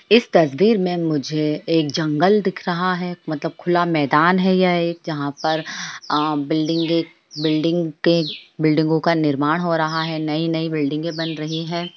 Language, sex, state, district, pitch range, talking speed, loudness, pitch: Hindi, female, Bihar, Bhagalpur, 155-175 Hz, 160 wpm, -20 LUFS, 160 Hz